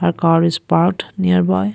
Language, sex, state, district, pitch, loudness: English, female, Arunachal Pradesh, Lower Dibang Valley, 115 Hz, -16 LUFS